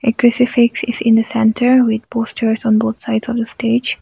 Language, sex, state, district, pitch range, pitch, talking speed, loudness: English, female, Nagaland, Kohima, 225-240 Hz, 230 Hz, 165 wpm, -15 LUFS